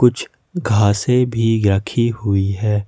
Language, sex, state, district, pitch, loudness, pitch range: Hindi, male, Jharkhand, Ranchi, 110 Hz, -17 LUFS, 100-120 Hz